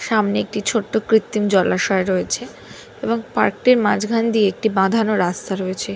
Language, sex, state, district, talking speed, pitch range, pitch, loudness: Bengali, female, West Bengal, Dakshin Dinajpur, 150 wpm, 190-220 Hz, 210 Hz, -19 LUFS